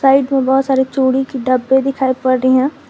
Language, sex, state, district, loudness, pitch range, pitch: Hindi, female, Jharkhand, Garhwa, -14 LUFS, 260-270 Hz, 265 Hz